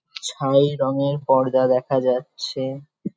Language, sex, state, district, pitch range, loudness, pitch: Bengali, male, West Bengal, Kolkata, 130-140 Hz, -21 LUFS, 135 Hz